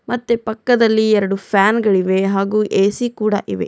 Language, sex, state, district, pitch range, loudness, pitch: Kannada, female, Karnataka, Bidar, 195-225 Hz, -16 LUFS, 215 Hz